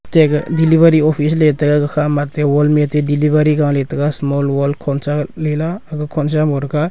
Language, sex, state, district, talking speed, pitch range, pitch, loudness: Wancho, male, Arunachal Pradesh, Longding, 210 wpm, 145-155 Hz, 150 Hz, -15 LUFS